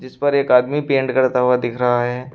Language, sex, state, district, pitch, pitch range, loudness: Hindi, male, Uttar Pradesh, Shamli, 130 Hz, 125-135 Hz, -17 LUFS